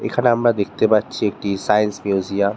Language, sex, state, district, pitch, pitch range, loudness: Bengali, male, West Bengal, North 24 Parganas, 105 Hz, 100-110 Hz, -19 LUFS